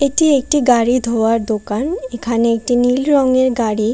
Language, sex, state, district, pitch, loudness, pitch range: Bengali, female, West Bengal, Kolkata, 245 Hz, -15 LUFS, 230-270 Hz